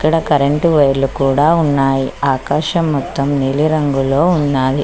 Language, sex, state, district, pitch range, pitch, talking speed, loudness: Telugu, female, Telangana, Mahabubabad, 135-155 Hz, 145 Hz, 135 wpm, -14 LUFS